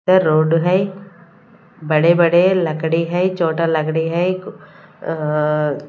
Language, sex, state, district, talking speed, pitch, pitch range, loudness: Hindi, female, Punjab, Kapurthala, 100 wpm, 170 Hz, 155-180 Hz, -17 LUFS